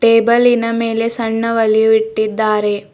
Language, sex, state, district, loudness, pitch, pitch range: Kannada, female, Karnataka, Bidar, -14 LUFS, 225 Hz, 220-230 Hz